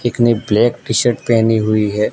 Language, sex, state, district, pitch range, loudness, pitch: Hindi, male, Gujarat, Gandhinagar, 110-120 Hz, -15 LUFS, 115 Hz